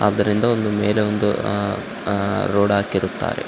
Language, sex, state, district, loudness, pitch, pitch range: Kannada, male, Karnataka, Raichur, -20 LUFS, 105 Hz, 100-105 Hz